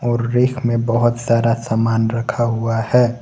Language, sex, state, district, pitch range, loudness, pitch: Hindi, male, Jharkhand, Garhwa, 115-120 Hz, -17 LUFS, 115 Hz